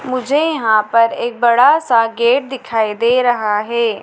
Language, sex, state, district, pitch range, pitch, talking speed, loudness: Hindi, female, Madhya Pradesh, Dhar, 225-255 Hz, 235 Hz, 165 wpm, -14 LUFS